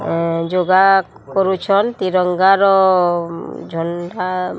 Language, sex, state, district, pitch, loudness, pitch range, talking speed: Odia, female, Odisha, Sambalpur, 185 Hz, -16 LUFS, 175-195 Hz, 80 wpm